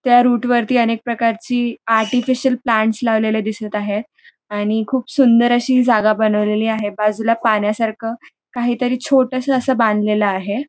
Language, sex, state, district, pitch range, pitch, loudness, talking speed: Marathi, female, Maharashtra, Pune, 215-250 Hz, 230 Hz, -17 LUFS, 140 wpm